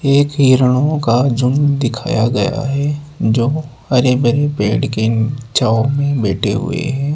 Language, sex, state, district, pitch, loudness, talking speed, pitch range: Hindi, male, Rajasthan, Jaipur, 130 Hz, -15 LUFS, 145 wpm, 120-145 Hz